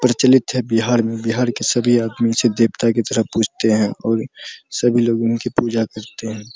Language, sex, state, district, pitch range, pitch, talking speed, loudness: Hindi, male, Bihar, Araria, 115-120 Hz, 115 Hz, 190 wpm, -18 LUFS